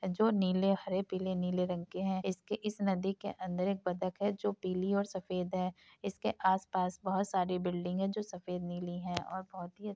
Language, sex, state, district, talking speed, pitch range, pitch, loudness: Hindi, female, Uttar Pradesh, Etah, 215 wpm, 180-195 Hz, 190 Hz, -35 LUFS